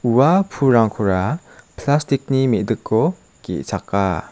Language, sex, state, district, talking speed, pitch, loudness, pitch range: Garo, male, Meghalaya, South Garo Hills, 85 wpm, 130 Hz, -19 LUFS, 105-145 Hz